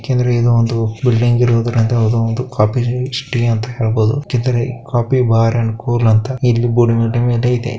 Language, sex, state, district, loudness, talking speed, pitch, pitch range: Kannada, male, Karnataka, Bellary, -15 LUFS, 155 wpm, 120 Hz, 115-125 Hz